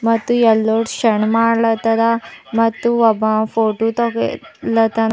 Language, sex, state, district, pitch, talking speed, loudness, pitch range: Kannada, female, Karnataka, Bidar, 225 Hz, 105 wpm, -16 LUFS, 225-230 Hz